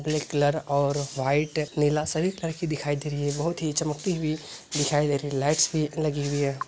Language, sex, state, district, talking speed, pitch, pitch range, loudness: Hindi, male, Bihar, Bhagalpur, 190 wpm, 150 Hz, 145-155 Hz, -26 LUFS